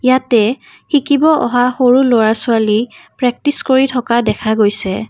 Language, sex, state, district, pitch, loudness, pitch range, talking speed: Assamese, female, Assam, Kamrup Metropolitan, 245 Hz, -13 LUFS, 220-265 Hz, 115 wpm